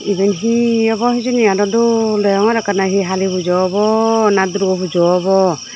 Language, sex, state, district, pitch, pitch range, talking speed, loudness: Chakma, female, Tripura, Dhalai, 200 Hz, 190-225 Hz, 165 wpm, -14 LUFS